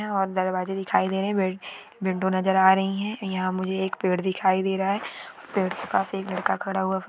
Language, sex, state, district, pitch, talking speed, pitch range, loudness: Hindi, female, Maharashtra, Dhule, 190 Hz, 235 wpm, 185-195 Hz, -25 LUFS